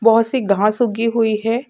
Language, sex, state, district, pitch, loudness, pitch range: Hindi, female, Chhattisgarh, Sukma, 225 Hz, -17 LUFS, 215-235 Hz